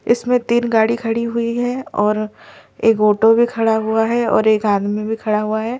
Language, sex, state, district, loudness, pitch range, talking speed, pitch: Hindi, male, Delhi, New Delhi, -17 LUFS, 215-235 Hz, 205 wpm, 225 Hz